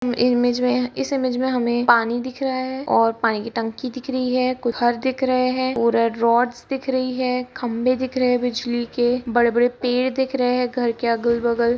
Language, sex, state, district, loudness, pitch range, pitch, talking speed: Hindi, female, Bihar, Kishanganj, -21 LUFS, 235-255 Hz, 245 Hz, 200 wpm